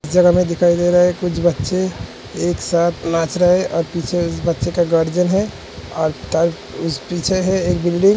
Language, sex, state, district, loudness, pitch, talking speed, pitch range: Hindi, male, Uttar Pradesh, Hamirpur, -17 LUFS, 175 Hz, 200 wpm, 165-180 Hz